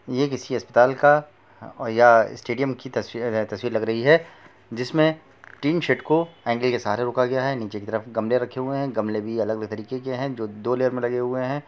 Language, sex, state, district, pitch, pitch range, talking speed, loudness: Bhojpuri, male, Bihar, Saran, 125 Hz, 115-135 Hz, 225 wpm, -23 LUFS